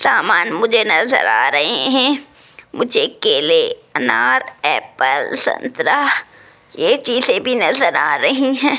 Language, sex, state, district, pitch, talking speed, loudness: Hindi, female, Rajasthan, Jaipur, 295 Hz, 115 wpm, -15 LUFS